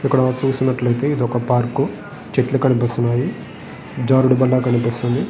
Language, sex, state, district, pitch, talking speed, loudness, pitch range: Telugu, male, Andhra Pradesh, Guntur, 125 Hz, 100 wpm, -18 LUFS, 120-130 Hz